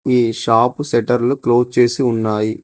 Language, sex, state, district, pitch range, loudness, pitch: Telugu, male, Telangana, Mahabubabad, 115-125 Hz, -16 LUFS, 120 Hz